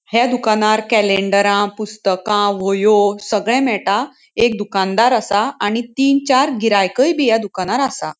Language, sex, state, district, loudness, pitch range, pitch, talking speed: Konkani, female, Goa, North and South Goa, -16 LUFS, 200-245 Hz, 215 Hz, 130 wpm